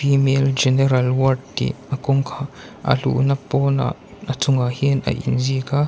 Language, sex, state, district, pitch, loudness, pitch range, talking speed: Mizo, male, Mizoram, Aizawl, 135 Hz, -20 LUFS, 130-140 Hz, 145 wpm